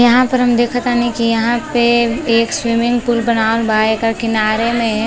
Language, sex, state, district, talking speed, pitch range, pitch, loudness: Bhojpuri, female, Uttar Pradesh, Deoria, 190 wpm, 225-240 Hz, 235 Hz, -14 LUFS